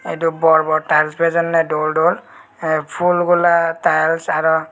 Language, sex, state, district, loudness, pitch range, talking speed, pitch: Chakma, male, Tripura, Dhalai, -16 LUFS, 155-170 Hz, 140 wpm, 160 Hz